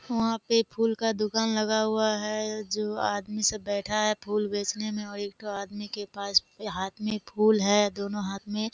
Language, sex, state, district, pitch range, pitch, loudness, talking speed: Hindi, female, Bihar, Kishanganj, 205-215 Hz, 210 Hz, -28 LUFS, 205 wpm